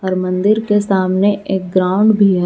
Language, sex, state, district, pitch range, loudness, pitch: Hindi, female, Jharkhand, Palamu, 185-205 Hz, -15 LUFS, 190 Hz